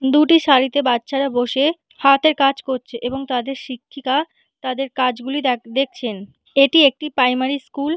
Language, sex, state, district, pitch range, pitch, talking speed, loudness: Bengali, female, West Bengal, Malda, 255-285 Hz, 270 Hz, 145 wpm, -18 LUFS